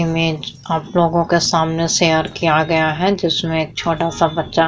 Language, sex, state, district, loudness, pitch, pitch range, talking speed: Hindi, female, Uttar Pradesh, Muzaffarnagar, -17 LUFS, 165 Hz, 160-170 Hz, 190 wpm